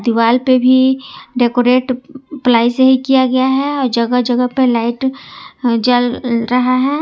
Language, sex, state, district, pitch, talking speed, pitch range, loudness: Hindi, female, Jharkhand, Ranchi, 255 Hz, 145 wpm, 245-265 Hz, -14 LUFS